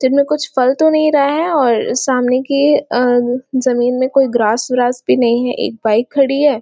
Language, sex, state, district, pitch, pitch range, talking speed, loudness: Hindi, female, Chhattisgarh, Korba, 255 Hz, 245-280 Hz, 235 wpm, -14 LUFS